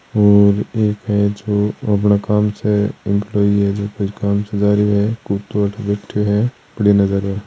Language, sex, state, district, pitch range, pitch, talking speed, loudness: Hindi, male, Rajasthan, Churu, 100-105 Hz, 105 Hz, 160 wpm, -17 LUFS